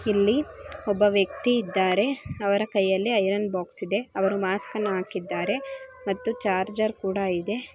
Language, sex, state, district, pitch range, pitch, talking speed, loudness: Kannada, female, Karnataka, Mysore, 195-225 Hz, 200 Hz, 130 wpm, -25 LUFS